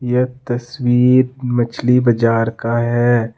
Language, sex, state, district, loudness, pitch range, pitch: Hindi, male, Jharkhand, Deoghar, -16 LUFS, 120-125 Hz, 120 Hz